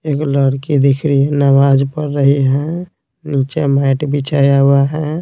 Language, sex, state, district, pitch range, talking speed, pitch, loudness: Hindi, male, Bihar, Patna, 140-150 Hz, 160 wpm, 140 Hz, -14 LUFS